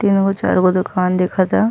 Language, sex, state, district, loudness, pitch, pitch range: Bhojpuri, female, Uttar Pradesh, Ghazipur, -16 LUFS, 185 Hz, 185-195 Hz